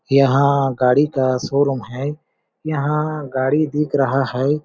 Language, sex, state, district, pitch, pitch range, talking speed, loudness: Hindi, male, Chhattisgarh, Balrampur, 140 Hz, 135-150 Hz, 130 wpm, -18 LUFS